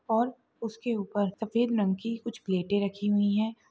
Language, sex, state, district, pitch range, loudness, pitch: Hindi, female, Maharashtra, Solapur, 205-230 Hz, -29 LUFS, 220 Hz